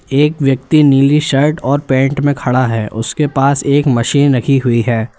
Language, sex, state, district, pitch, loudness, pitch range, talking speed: Hindi, male, Uttar Pradesh, Lalitpur, 135 Hz, -13 LUFS, 125-145 Hz, 185 wpm